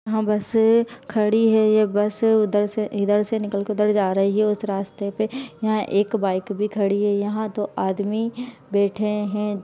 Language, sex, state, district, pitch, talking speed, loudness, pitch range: Hindi, female, Maharashtra, Nagpur, 210 Hz, 185 wpm, -21 LUFS, 205-220 Hz